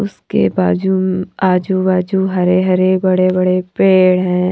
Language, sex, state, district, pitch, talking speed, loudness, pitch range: Hindi, female, Haryana, Charkhi Dadri, 185 Hz, 145 wpm, -14 LUFS, 180-190 Hz